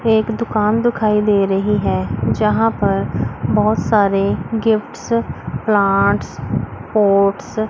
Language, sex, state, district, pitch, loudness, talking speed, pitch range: Hindi, female, Chandigarh, Chandigarh, 210 Hz, -17 LUFS, 110 wpm, 200-220 Hz